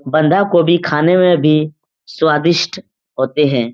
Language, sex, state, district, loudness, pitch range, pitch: Hindi, male, Uttar Pradesh, Etah, -14 LUFS, 150-170 Hz, 155 Hz